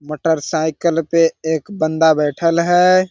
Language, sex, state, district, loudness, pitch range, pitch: Hindi, male, Jharkhand, Sahebganj, -16 LUFS, 155-170 Hz, 160 Hz